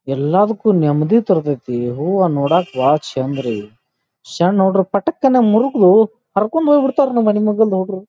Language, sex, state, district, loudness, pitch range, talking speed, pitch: Kannada, male, Karnataka, Bijapur, -15 LUFS, 140-220 Hz, 150 wpm, 190 Hz